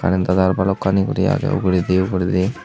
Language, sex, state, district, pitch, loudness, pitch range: Chakma, male, Tripura, Unakoti, 95 Hz, -18 LUFS, 90-95 Hz